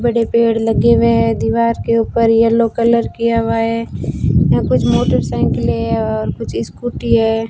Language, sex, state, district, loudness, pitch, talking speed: Hindi, female, Rajasthan, Bikaner, -15 LUFS, 225 Hz, 170 wpm